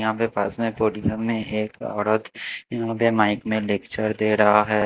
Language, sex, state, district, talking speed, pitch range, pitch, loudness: Hindi, male, Haryana, Jhajjar, 185 wpm, 105-110 Hz, 110 Hz, -23 LUFS